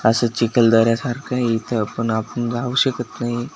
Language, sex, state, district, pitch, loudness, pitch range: Marathi, male, Maharashtra, Washim, 120 Hz, -19 LUFS, 115-125 Hz